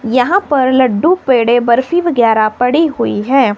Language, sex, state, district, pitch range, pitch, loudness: Hindi, male, Himachal Pradesh, Shimla, 235-305 Hz, 255 Hz, -12 LUFS